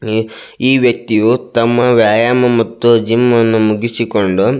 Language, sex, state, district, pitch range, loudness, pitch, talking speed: Kannada, male, Karnataka, Belgaum, 110-120 Hz, -12 LUFS, 115 Hz, 115 wpm